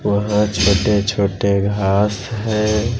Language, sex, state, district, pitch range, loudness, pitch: Hindi, male, Bihar, West Champaran, 100-105 Hz, -17 LUFS, 105 Hz